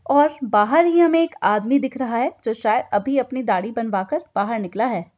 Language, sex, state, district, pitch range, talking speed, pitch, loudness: Hindi, female, Uttar Pradesh, Budaun, 220-295 Hz, 220 wpm, 255 Hz, -20 LUFS